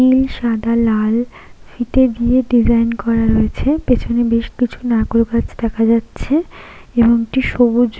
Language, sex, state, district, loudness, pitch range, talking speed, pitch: Bengali, female, West Bengal, Kolkata, -16 LUFS, 230-245 Hz, 145 wpm, 235 Hz